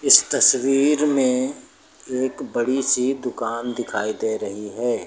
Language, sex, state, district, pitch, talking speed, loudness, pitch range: Hindi, male, Uttar Pradesh, Lucknow, 125 Hz, 130 wpm, -20 LUFS, 115-135 Hz